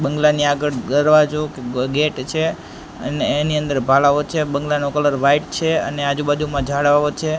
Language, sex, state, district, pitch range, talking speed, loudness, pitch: Gujarati, male, Gujarat, Gandhinagar, 140-150 Hz, 170 wpm, -18 LUFS, 145 Hz